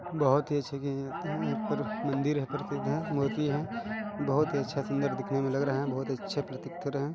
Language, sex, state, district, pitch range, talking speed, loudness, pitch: Hindi, male, Chhattisgarh, Balrampur, 135-150 Hz, 170 wpm, -31 LUFS, 140 Hz